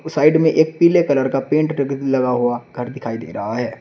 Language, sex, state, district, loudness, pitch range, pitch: Hindi, male, Uttar Pradesh, Shamli, -18 LUFS, 125-155 Hz, 140 Hz